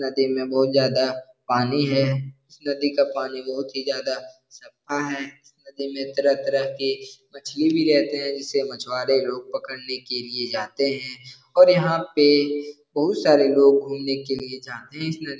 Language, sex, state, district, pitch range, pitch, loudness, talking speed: Hindi, male, Bihar, Jahanabad, 130-145 Hz, 140 Hz, -22 LUFS, 165 wpm